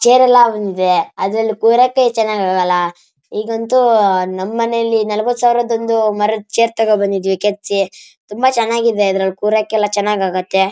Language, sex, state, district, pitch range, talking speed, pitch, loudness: Kannada, male, Karnataka, Shimoga, 195-230 Hz, 130 wpm, 215 Hz, -15 LUFS